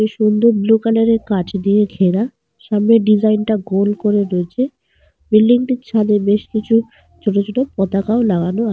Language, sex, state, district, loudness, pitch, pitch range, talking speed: Bengali, female, Jharkhand, Sahebganj, -16 LUFS, 215 Hz, 200-225 Hz, 165 wpm